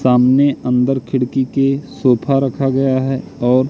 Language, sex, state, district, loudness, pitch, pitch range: Hindi, male, Madhya Pradesh, Katni, -16 LUFS, 130 Hz, 125-135 Hz